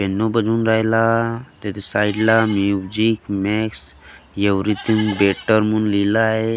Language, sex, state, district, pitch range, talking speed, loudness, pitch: Marathi, male, Maharashtra, Gondia, 100-110 Hz, 110 wpm, -18 LUFS, 110 Hz